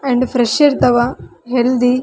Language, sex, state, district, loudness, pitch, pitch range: Kannada, female, Karnataka, Raichur, -14 LUFS, 245 Hz, 240-255 Hz